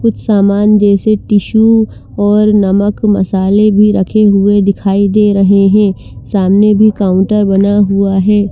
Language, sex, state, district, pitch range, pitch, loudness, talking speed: Hindi, female, Chandigarh, Chandigarh, 195-210 Hz, 205 Hz, -10 LUFS, 140 wpm